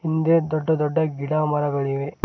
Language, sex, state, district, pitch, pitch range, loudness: Kannada, male, Karnataka, Bidar, 155 Hz, 145-160 Hz, -22 LUFS